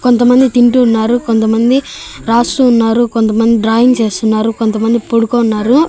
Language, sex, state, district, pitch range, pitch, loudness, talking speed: Telugu, male, Andhra Pradesh, Annamaya, 225-245 Hz, 230 Hz, -11 LUFS, 120 wpm